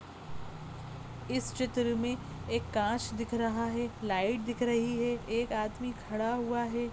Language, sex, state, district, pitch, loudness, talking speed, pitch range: Hindi, female, Goa, North and South Goa, 235 Hz, -33 LUFS, 145 wpm, 215-240 Hz